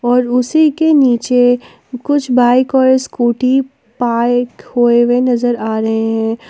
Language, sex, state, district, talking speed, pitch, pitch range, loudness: Hindi, female, Jharkhand, Palamu, 130 wpm, 245 Hz, 240-260 Hz, -13 LUFS